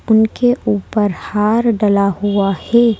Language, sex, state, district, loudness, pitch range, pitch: Hindi, female, Madhya Pradesh, Bhopal, -15 LUFS, 200-230 Hz, 210 Hz